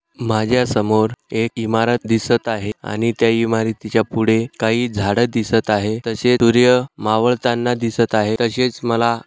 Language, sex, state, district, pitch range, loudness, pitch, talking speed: Marathi, male, Maharashtra, Sindhudurg, 110-120 Hz, -18 LUFS, 115 Hz, 135 wpm